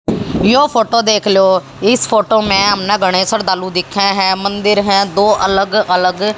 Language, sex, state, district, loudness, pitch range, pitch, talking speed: Hindi, female, Haryana, Jhajjar, -12 LUFS, 190-215 Hz, 200 Hz, 160 wpm